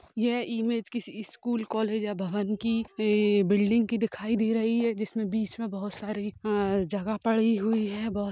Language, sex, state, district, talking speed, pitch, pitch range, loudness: Hindi, female, Bihar, Sitamarhi, 175 wpm, 215 Hz, 205-225 Hz, -28 LUFS